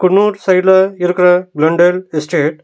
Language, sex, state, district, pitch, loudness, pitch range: Tamil, male, Tamil Nadu, Nilgiris, 180 Hz, -12 LUFS, 170-190 Hz